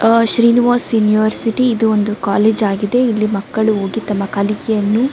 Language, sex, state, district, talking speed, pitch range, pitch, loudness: Kannada, female, Karnataka, Dakshina Kannada, 140 wpm, 205-230 Hz, 220 Hz, -15 LUFS